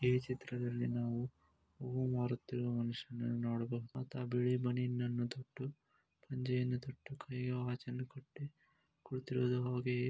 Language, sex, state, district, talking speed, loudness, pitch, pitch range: Kannada, male, Karnataka, Gulbarga, 105 wpm, -40 LUFS, 125 Hz, 120-130 Hz